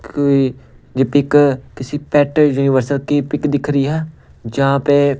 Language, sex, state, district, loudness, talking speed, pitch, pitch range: Hindi, male, Punjab, Pathankot, -16 LUFS, 150 wpm, 140 Hz, 135-145 Hz